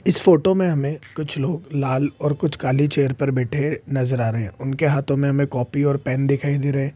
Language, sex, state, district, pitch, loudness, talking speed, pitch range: Hindi, male, Bihar, Saharsa, 140 Hz, -21 LUFS, 240 wpm, 135-150 Hz